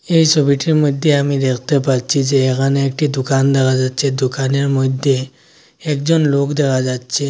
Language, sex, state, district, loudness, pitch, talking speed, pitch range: Bengali, male, Assam, Hailakandi, -15 LUFS, 140 Hz, 150 wpm, 130-145 Hz